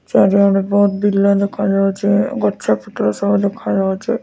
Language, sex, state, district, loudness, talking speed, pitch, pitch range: Odia, female, Odisha, Nuapada, -16 LUFS, 140 wpm, 200 Hz, 195-200 Hz